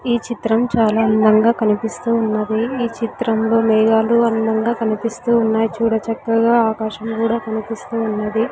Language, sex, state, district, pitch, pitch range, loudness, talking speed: Telugu, female, Andhra Pradesh, Sri Satya Sai, 225 Hz, 220-230 Hz, -17 LUFS, 125 wpm